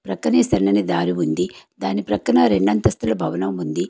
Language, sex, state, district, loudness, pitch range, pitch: Telugu, female, Telangana, Hyderabad, -19 LUFS, 90-100 Hz, 95 Hz